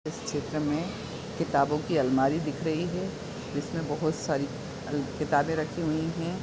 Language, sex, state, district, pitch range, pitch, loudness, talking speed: Hindi, male, Bihar, Muzaffarpur, 145-165 Hz, 155 Hz, -30 LUFS, 150 wpm